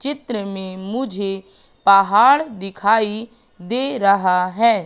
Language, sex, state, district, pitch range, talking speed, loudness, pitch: Hindi, female, Madhya Pradesh, Katni, 195-240 Hz, 100 wpm, -18 LUFS, 205 Hz